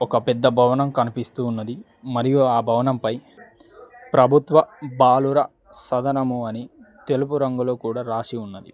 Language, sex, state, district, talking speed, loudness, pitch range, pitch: Telugu, male, Telangana, Mahabubabad, 115 wpm, -21 LUFS, 120-135 Hz, 125 Hz